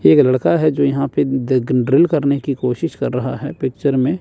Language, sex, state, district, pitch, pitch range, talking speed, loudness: Hindi, male, Chandigarh, Chandigarh, 140 Hz, 130-145 Hz, 215 wpm, -17 LUFS